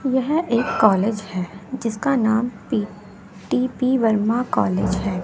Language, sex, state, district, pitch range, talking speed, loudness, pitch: Hindi, female, Bihar, West Champaran, 205-255 Hz, 125 wpm, -21 LUFS, 225 Hz